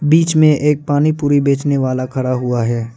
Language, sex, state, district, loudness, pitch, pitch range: Hindi, male, Arunachal Pradesh, Lower Dibang Valley, -15 LUFS, 140 Hz, 130-150 Hz